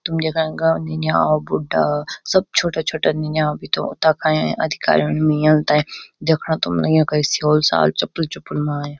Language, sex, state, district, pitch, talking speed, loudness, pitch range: Garhwali, female, Uttarakhand, Uttarkashi, 150 Hz, 145 wpm, -18 LUFS, 145-160 Hz